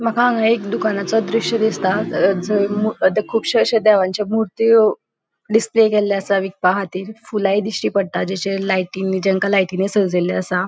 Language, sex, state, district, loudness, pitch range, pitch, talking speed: Konkani, female, Goa, North and South Goa, -18 LUFS, 190-220 Hz, 200 Hz, 150 wpm